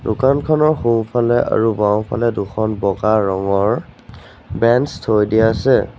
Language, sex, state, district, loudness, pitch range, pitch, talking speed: Assamese, male, Assam, Sonitpur, -16 LUFS, 105-120 Hz, 110 Hz, 110 wpm